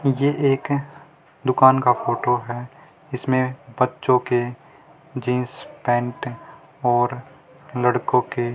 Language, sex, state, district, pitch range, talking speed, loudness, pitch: Hindi, male, Haryana, Rohtak, 125-140 Hz, 100 wpm, -21 LUFS, 130 Hz